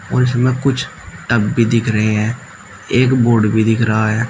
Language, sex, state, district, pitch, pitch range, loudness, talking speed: Hindi, male, Uttar Pradesh, Shamli, 115 Hz, 110-125 Hz, -15 LUFS, 195 wpm